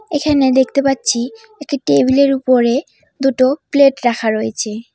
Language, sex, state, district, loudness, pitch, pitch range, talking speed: Bengali, female, West Bengal, Cooch Behar, -15 LUFS, 260 Hz, 235-280 Hz, 135 wpm